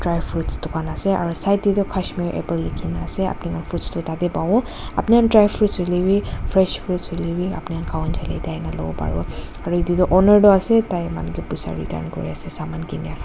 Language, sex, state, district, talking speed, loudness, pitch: Nagamese, female, Nagaland, Dimapur, 220 wpm, -21 LUFS, 175 Hz